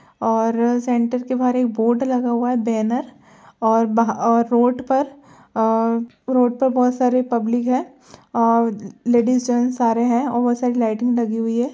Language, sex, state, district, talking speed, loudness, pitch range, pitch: Hindi, female, Bihar, Lakhisarai, 175 wpm, -19 LUFS, 230-250 Hz, 240 Hz